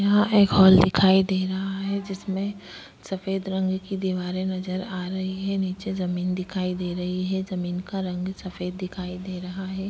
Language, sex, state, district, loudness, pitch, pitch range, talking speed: Hindi, female, Uttar Pradesh, Jyotiba Phule Nagar, -25 LUFS, 190 Hz, 185-195 Hz, 180 wpm